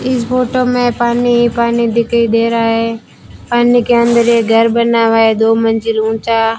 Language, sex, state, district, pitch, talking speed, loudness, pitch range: Hindi, female, Rajasthan, Bikaner, 235 Hz, 190 wpm, -12 LUFS, 225-240 Hz